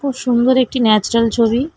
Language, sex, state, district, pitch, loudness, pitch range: Bengali, female, West Bengal, Alipurduar, 240 Hz, -15 LUFS, 230-260 Hz